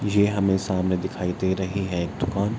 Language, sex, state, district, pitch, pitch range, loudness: Hindi, male, Bihar, Araria, 95 Hz, 90-100 Hz, -24 LUFS